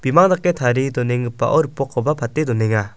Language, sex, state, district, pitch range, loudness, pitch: Garo, male, Meghalaya, South Garo Hills, 120-155 Hz, -18 LUFS, 130 Hz